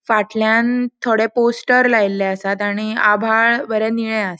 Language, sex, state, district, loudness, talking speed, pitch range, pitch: Konkani, female, Goa, North and South Goa, -16 LUFS, 150 wpm, 210-235 Hz, 220 Hz